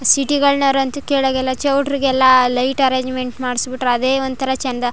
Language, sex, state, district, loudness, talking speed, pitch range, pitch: Kannada, female, Karnataka, Chamarajanagar, -16 LUFS, 195 wpm, 255-275 Hz, 260 Hz